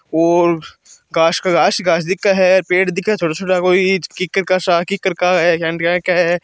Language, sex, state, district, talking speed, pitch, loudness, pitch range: Marwari, male, Rajasthan, Churu, 165 wpm, 180 Hz, -15 LUFS, 170-190 Hz